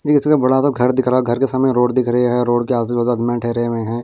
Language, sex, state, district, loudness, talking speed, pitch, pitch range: Hindi, male, Delhi, New Delhi, -16 LUFS, 340 wpm, 125 Hz, 120-130 Hz